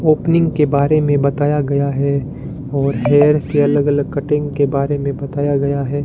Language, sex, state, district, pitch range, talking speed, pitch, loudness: Hindi, male, Rajasthan, Bikaner, 140-150 Hz, 190 wpm, 145 Hz, -16 LUFS